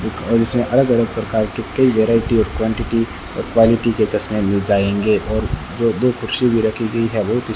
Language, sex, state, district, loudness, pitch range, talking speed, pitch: Hindi, male, Rajasthan, Bikaner, -17 LUFS, 110-115 Hz, 205 wpm, 115 Hz